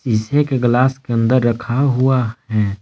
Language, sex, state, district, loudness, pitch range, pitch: Hindi, male, Jharkhand, Palamu, -17 LUFS, 115-130 Hz, 120 Hz